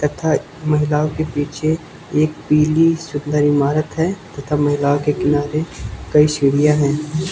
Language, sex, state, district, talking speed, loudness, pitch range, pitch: Hindi, male, Uttar Pradesh, Lucknow, 130 wpm, -18 LUFS, 145-155 Hz, 150 Hz